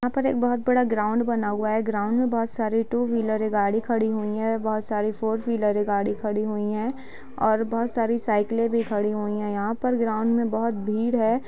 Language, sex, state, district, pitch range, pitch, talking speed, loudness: Hindi, female, Bihar, Sitamarhi, 210-230 Hz, 220 Hz, 235 wpm, -24 LUFS